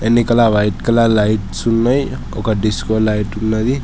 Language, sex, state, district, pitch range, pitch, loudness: Telugu, male, Telangana, Hyderabad, 105-115 Hz, 110 Hz, -16 LUFS